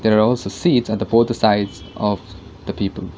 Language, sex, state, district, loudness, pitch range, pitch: English, female, Karnataka, Bangalore, -19 LUFS, 95-110 Hz, 105 Hz